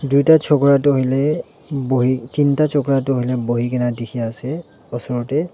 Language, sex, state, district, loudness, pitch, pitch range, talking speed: Nagamese, male, Nagaland, Dimapur, -18 LUFS, 135 Hz, 125-145 Hz, 165 wpm